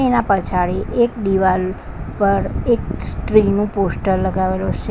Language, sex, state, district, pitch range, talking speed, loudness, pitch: Gujarati, female, Gujarat, Valsad, 185-215 Hz, 120 wpm, -18 LUFS, 195 Hz